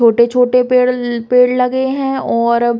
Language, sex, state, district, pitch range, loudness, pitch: Bundeli, female, Uttar Pradesh, Hamirpur, 235-250 Hz, -13 LUFS, 250 Hz